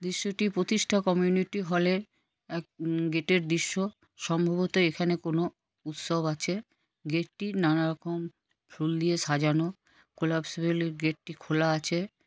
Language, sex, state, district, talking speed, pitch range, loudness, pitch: Bengali, female, West Bengal, Kolkata, 120 wpm, 160-185 Hz, -29 LUFS, 170 Hz